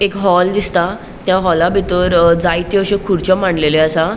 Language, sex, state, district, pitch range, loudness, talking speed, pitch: Konkani, female, Goa, North and South Goa, 170-195 Hz, -14 LUFS, 160 wpm, 180 Hz